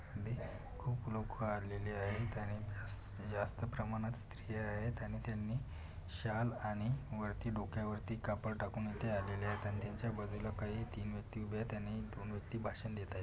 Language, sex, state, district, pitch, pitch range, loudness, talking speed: Marathi, male, Maharashtra, Pune, 105 Hz, 105-110 Hz, -41 LUFS, 160 wpm